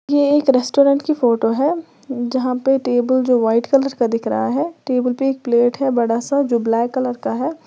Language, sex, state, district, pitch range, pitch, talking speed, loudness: Hindi, female, Uttar Pradesh, Lalitpur, 240-280 Hz, 255 Hz, 220 wpm, -17 LUFS